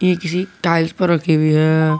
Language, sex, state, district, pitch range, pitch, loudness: Hindi, male, Jharkhand, Garhwa, 155-180 Hz, 170 Hz, -16 LUFS